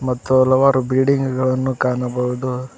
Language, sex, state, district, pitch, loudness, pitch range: Kannada, male, Karnataka, Koppal, 130 Hz, -17 LUFS, 125-130 Hz